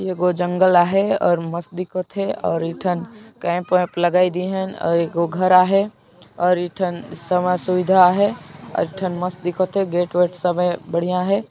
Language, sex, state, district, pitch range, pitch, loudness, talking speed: Sadri, female, Chhattisgarh, Jashpur, 175-185 Hz, 180 Hz, -19 LUFS, 165 wpm